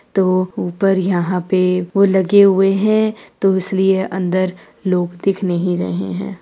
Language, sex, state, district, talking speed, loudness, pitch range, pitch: Hindi, female, Uttar Pradesh, Jyotiba Phule Nagar, 150 wpm, -16 LUFS, 180-195 Hz, 190 Hz